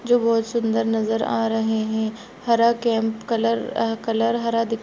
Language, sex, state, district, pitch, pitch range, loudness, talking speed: Hindi, female, Chhattisgarh, Raigarh, 225 Hz, 225-230 Hz, -22 LUFS, 175 wpm